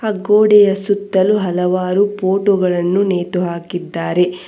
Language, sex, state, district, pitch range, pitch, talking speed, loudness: Kannada, female, Karnataka, Bangalore, 180-200 Hz, 190 Hz, 105 wpm, -15 LUFS